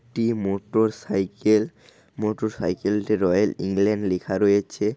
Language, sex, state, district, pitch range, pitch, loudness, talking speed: Bengali, male, West Bengal, Jhargram, 100-110 Hz, 105 Hz, -23 LUFS, 110 wpm